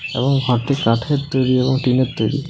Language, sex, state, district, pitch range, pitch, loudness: Bengali, male, West Bengal, Alipurduar, 125-140 Hz, 130 Hz, -18 LUFS